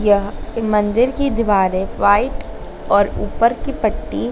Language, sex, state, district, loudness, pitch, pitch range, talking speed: Hindi, female, Madhya Pradesh, Dhar, -17 LUFS, 215 Hz, 205-240 Hz, 125 wpm